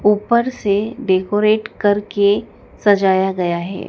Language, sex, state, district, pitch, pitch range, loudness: Hindi, female, Madhya Pradesh, Dhar, 205 Hz, 190-215 Hz, -17 LUFS